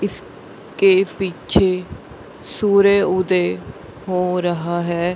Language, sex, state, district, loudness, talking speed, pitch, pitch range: Hindi, female, Bihar, Gaya, -18 LUFS, 80 wpm, 185 Hz, 175-190 Hz